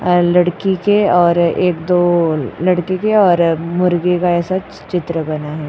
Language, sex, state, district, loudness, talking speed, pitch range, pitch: Hindi, female, Uttar Pradesh, Jyotiba Phule Nagar, -15 LUFS, 160 wpm, 170-180 Hz, 175 Hz